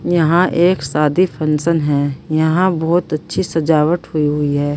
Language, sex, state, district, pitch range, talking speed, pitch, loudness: Hindi, female, Uttar Pradesh, Saharanpur, 150-175 Hz, 150 wpm, 160 Hz, -16 LUFS